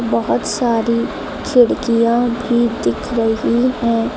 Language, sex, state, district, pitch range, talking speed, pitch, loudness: Hindi, female, Uttar Pradesh, Lucknow, 230-245 Hz, 100 wpm, 235 Hz, -16 LUFS